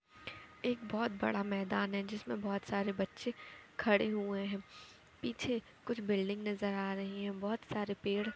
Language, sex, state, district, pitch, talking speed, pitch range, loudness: Hindi, female, Uttar Pradesh, Etah, 200 Hz, 165 wpm, 200-210 Hz, -37 LUFS